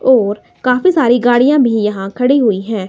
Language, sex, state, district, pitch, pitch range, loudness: Hindi, female, Himachal Pradesh, Shimla, 240 Hz, 210-260 Hz, -13 LUFS